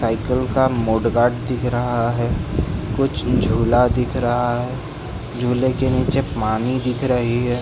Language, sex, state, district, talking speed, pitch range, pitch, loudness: Hindi, male, Bihar, Sitamarhi, 150 wpm, 115-125 Hz, 120 Hz, -20 LUFS